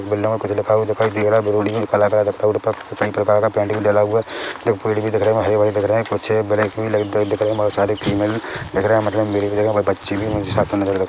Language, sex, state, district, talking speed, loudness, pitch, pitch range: Hindi, male, Chhattisgarh, Bilaspur, 290 wpm, -18 LUFS, 105 Hz, 105-110 Hz